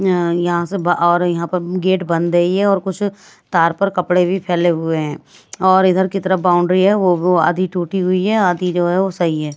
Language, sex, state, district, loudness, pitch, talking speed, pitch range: Hindi, female, Haryana, Jhajjar, -16 LUFS, 180 Hz, 225 wpm, 175-190 Hz